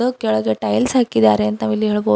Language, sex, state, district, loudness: Kannada, female, Karnataka, Bidar, -17 LUFS